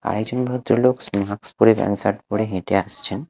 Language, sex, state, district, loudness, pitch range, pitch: Bengali, male, Odisha, Khordha, -18 LUFS, 100-120 Hz, 105 Hz